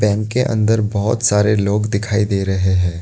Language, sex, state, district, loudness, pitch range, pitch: Hindi, male, Assam, Kamrup Metropolitan, -17 LUFS, 100-110 Hz, 105 Hz